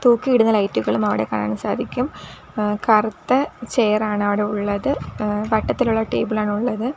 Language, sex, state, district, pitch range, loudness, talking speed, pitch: Malayalam, female, Kerala, Kollam, 210-240 Hz, -20 LUFS, 120 wpm, 215 Hz